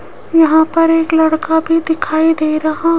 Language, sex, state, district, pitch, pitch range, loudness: Hindi, female, Rajasthan, Jaipur, 320 Hz, 315-325 Hz, -13 LUFS